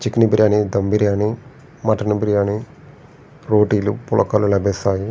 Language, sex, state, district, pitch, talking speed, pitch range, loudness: Telugu, male, Andhra Pradesh, Srikakulam, 105 Hz, 130 wpm, 105-125 Hz, -18 LUFS